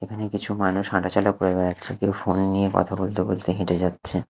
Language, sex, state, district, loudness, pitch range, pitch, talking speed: Bengali, male, Odisha, Khordha, -24 LUFS, 90-100 Hz, 95 Hz, 210 wpm